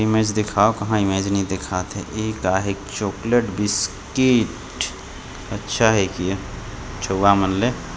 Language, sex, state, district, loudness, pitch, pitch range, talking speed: Hindi, male, Chhattisgarh, Jashpur, -21 LUFS, 100 Hz, 95-110 Hz, 145 wpm